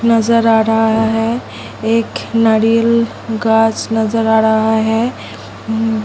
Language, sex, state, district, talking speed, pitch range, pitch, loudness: Hindi, female, Bihar, Samastipur, 130 wpm, 220-230 Hz, 225 Hz, -14 LUFS